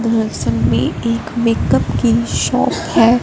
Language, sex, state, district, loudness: Hindi, female, Punjab, Fazilka, -16 LUFS